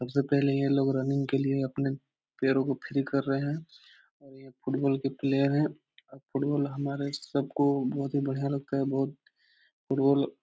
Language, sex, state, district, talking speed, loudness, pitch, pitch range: Hindi, male, Bihar, Jahanabad, 185 wpm, -29 LUFS, 140 Hz, 135-140 Hz